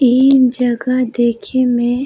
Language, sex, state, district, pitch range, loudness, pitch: Bhojpuri, female, Uttar Pradesh, Varanasi, 240-255 Hz, -14 LUFS, 250 Hz